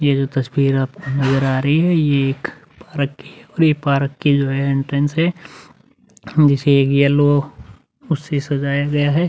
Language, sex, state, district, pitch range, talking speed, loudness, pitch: Hindi, male, Uttar Pradesh, Muzaffarnagar, 135-150 Hz, 170 wpm, -17 LUFS, 140 Hz